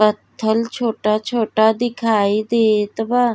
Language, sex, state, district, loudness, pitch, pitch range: Bhojpuri, female, Uttar Pradesh, Gorakhpur, -18 LUFS, 220 Hz, 215-235 Hz